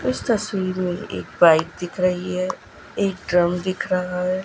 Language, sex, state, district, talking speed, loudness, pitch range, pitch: Hindi, female, Gujarat, Gandhinagar, 175 wpm, -22 LUFS, 180-190 Hz, 185 Hz